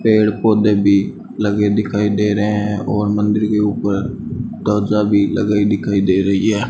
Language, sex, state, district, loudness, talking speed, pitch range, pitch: Hindi, male, Rajasthan, Bikaner, -16 LUFS, 170 wpm, 100-105 Hz, 105 Hz